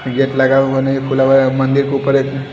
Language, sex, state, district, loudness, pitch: Hindi, male, Haryana, Rohtak, -14 LUFS, 135 Hz